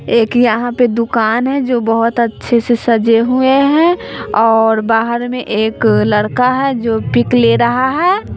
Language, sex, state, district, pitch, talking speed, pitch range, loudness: Hindi, female, Bihar, West Champaran, 235 Hz, 165 wpm, 225-250 Hz, -13 LUFS